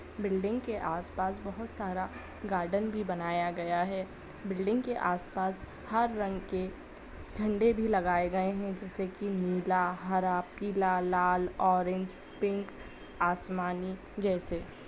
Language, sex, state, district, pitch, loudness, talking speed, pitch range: Hindi, female, Bihar, Sitamarhi, 190 Hz, -32 LUFS, 130 wpm, 180-200 Hz